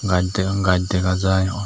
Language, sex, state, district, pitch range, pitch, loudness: Chakma, male, Tripura, Dhalai, 90-95 Hz, 95 Hz, -20 LUFS